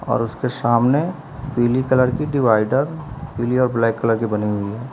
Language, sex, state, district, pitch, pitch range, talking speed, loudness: Hindi, male, Uttar Pradesh, Lucknow, 125 Hz, 115-135 Hz, 185 wpm, -19 LUFS